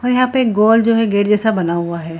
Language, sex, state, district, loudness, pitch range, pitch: Hindi, female, Bihar, Gaya, -15 LUFS, 175-230 Hz, 220 Hz